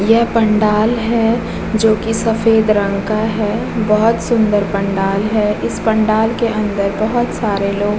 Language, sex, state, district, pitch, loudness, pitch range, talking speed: Hindi, female, Bihar, Vaishali, 215 Hz, -15 LUFS, 205-225 Hz, 155 wpm